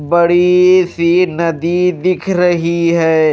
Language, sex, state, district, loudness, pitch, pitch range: Hindi, male, Odisha, Malkangiri, -12 LUFS, 170 Hz, 170-180 Hz